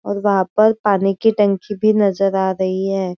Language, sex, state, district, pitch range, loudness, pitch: Hindi, female, Maharashtra, Aurangabad, 190-205 Hz, -17 LUFS, 195 Hz